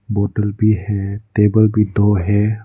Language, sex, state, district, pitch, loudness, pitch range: Hindi, male, Arunachal Pradesh, Lower Dibang Valley, 105 Hz, -16 LUFS, 100-110 Hz